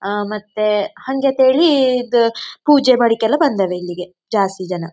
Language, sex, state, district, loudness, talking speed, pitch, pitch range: Kannada, female, Karnataka, Dakshina Kannada, -16 LUFS, 160 wpm, 225 Hz, 195-260 Hz